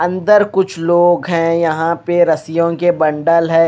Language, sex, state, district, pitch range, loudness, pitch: Hindi, male, Haryana, Rohtak, 165-175 Hz, -14 LUFS, 170 Hz